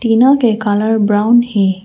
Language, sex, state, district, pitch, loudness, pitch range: Hindi, female, Arunachal Pradesh, Lower Dibang Valley, 220 Hz, -12 LUFS, 205-235 Hz